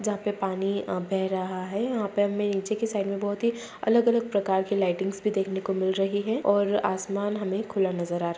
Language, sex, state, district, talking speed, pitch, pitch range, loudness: Hindi, female, Bihar, Madhepura, 245 wpm, 200 Hz, 190-210 Hz, -27 LUFS